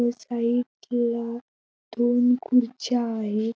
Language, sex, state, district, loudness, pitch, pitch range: Marathi, female, Maharashtra, Sindhudurg, -24 LUFS, 240 Hz, 235-245 Hz